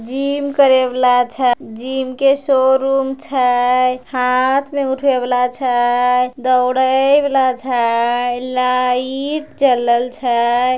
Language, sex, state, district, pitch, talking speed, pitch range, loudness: Angika, female, Bihar, Begusarai, 255 Hz, 110 wpm, 250-270 Hz, -15 LUFS